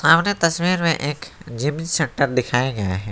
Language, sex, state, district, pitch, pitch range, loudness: Hindi, male, West Bengal, Alipurduar, 150 Hz, 125-170 Hz, -20 LUFS